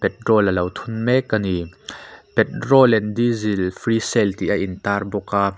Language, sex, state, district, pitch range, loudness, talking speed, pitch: Mizo, male, Mizoram, Aizawl, 95-115 Hz, -19 LUFS, 170 wpm, 105 Hz